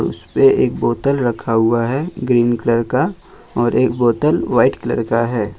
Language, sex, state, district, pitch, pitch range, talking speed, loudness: Hindi, male, Jharkhand, Ranchi, 120 Hz, 115-135 Hz, 170 wpm, -16 LUFS